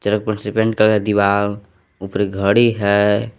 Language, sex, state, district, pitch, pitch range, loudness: Hindi, male, Jharkhand, Palamu, 105 Hz, 100-110 Hz, -17 LUFS